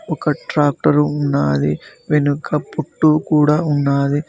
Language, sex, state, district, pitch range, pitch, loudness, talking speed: Telugu, male, Telangana, Mahabubabad, 140-150 Hz, 150 Hz, -17 LUFS, 100 wpm